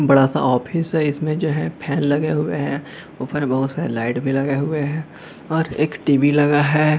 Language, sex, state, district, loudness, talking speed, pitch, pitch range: Hindi, male, Jharkhand, Jamtara, -20 LUFS, 180 wpm, 145 Hz, 140-155 Hz